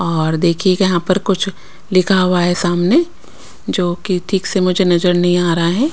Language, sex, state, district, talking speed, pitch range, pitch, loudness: Hindi, female, Bihar, West Champaran, 190 wpm, 175-190 Hz, 185 Hz, -15 LUFS